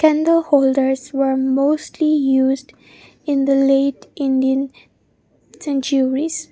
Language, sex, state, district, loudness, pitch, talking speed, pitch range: English, female, Mizoram, Aizawl, -17 LUFS, 275 Hz, 90 wpm, 265-295 Hz